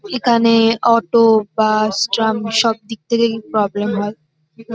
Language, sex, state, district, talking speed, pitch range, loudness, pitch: Bengali, female, West Bengal, North 24 Parganas, 100 wpm, 210-230 Hz, -15 LUFS, 225 Hz